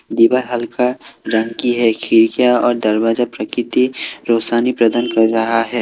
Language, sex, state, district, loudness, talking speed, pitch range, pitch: Hindi, male, Assam, Kamrup Metropolitan, -16 LUFS, 145 wpm, 115-120 Hz, 115 Hz